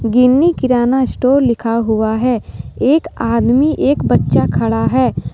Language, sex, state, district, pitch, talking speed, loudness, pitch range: Hindi, female, Jharkhand, Deoghar, 240 Hz, 135 wpm, -14 LUFS, 220-260 Hz